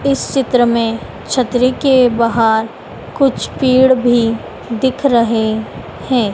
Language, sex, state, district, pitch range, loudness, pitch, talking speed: Hindi, female, Madhya Pradesh, Dhar, 230-260 Hz, -14 LUFS, 245 Hz, 115 wpm